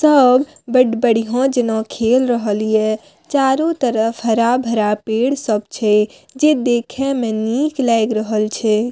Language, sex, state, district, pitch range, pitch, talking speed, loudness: Maithili, female, Bihar, Madhepura, 220-260 Hz, 235 Hz, 135 wpm, -16 LUFS